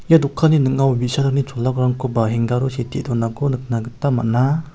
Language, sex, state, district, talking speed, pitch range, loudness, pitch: Garo, male, Meghalaya, South Garo Hills, 165 wpm, 120-140 Hz, -19 LUFS, 130 Hz